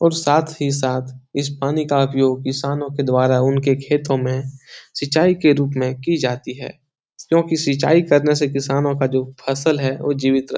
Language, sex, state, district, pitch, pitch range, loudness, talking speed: Hindi, male, Bihar, Jahanabad, 140 Hz, 130-145 Hz, -19 LUFS, 195 wpm